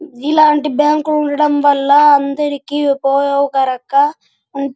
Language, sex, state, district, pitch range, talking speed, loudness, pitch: Telugu, male, Andhra Pradesh, Anantapur, 275-295 Hz, 100 wpm, -13 LUFS, 285 Hz